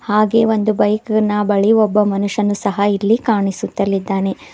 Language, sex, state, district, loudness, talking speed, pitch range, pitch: Kannada, female, Karnataka, Bidar, -16 LUFS, 130 wpm, 200-215 Hz, 210 Hz